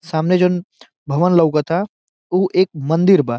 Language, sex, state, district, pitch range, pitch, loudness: Bhojpuri, male, Bihar, Saran, 155-180 Hz, 175 Hz, -17 LUFS